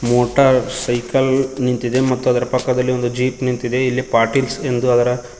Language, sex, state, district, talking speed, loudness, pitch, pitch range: Kannada, male, Karnataka, Koppal, 145 wpm, -17 LUFS, 125 Hz, 120-130 Hz